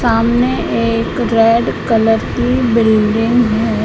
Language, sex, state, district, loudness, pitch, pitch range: Hindi, female, Madhya Pradesh, Katni, -13 LUFS, 225 Hz, 220-235 Hz